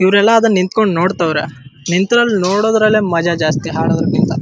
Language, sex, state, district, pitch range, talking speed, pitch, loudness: Kannada, male, Karnataka, Dharwad, 165-215 Hz, 150 wpm, 185 Hz, -14 LUFS